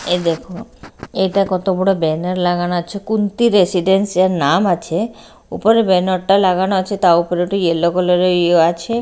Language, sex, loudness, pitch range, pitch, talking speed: Bengali, female, -16 LUFS, 175-195 Hz, 185 Hz, 175 wpm